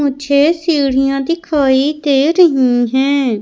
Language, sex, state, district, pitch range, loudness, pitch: Hindi, female, Madhya Pradesh, Umaria, 270-305 Hz, -13 LUFS, 280 Hz